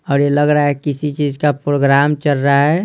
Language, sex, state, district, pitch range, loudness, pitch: Hindi, male, Bihar, Patna, 140-150 Hz, -15 LUFS, 145 Hz